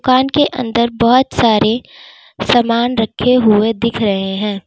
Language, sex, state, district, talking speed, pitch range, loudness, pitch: Hindi, female, Uttar Pradesh, Lalitpur, 140 wpm, 215-250 Hz, -14 LUFS, 235 Hz